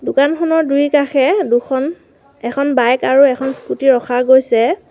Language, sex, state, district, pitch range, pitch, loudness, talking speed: Assamese, female, Assam, Sonitpur, 250-285 Hz, 265 Hz, -14 LUFS, 120 wpm